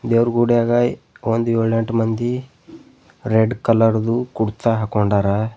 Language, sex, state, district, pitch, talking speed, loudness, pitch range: Kannada, male, Karnataka, Bidar, 115 Hz, 120 wpm, -18 LUFS, 110-120 Hz